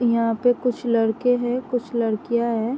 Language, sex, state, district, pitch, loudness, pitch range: Hindi, female, Uttar Pradesh, Varanasi, 235 Hz, -22 LUFS, 230-245 Hz